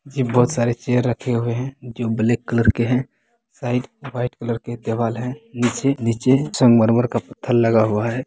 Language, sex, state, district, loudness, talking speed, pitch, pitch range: Hindi, male, Bihar, Begusarai, -20 LUFS, 190 wpm, 120 Hz, 115-125 Hz